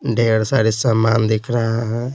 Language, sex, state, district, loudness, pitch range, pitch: Hindi, male, Bihar, Patna, -17 LUFS, 110-120 Hz, 115 Hz